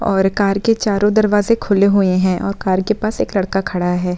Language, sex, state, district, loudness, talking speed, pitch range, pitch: Hindi, female, Uttar Pradesh, Muzaffarnagar, -16 LUFS, 230 wpm, 185-210 Hz, 200 Hz